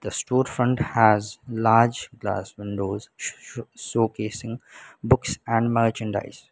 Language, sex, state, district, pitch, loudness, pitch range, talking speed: English, male, Sikkim, Gangtok, 115 Hz, -24 LUFS, 105-120 Hz, 90 wpm